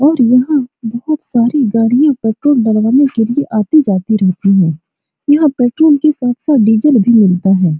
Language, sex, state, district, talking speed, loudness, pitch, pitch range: Hindi, female, Bihar, Supaul, 155 wpm, -11 LUFS, 240 Hz, 215-285 Hz